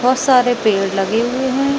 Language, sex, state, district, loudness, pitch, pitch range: Hindi, female, Chhattisgarh, Bilaspur, -16 LUFS, 245 Hz, 215-260 Hz